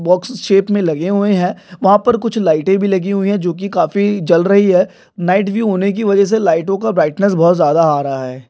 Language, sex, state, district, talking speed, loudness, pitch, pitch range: Hindi, male, Maharashtra, Nagpur, 240 wpm, -14 LUFS, 195 Hz, 180-205 Hz